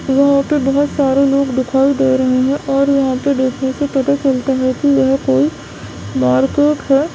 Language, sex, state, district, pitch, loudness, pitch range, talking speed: Hindi, female, Bihar, Darbhanga, 270 Hz, -14 LUFS, 260-280 Hz, 170 wpm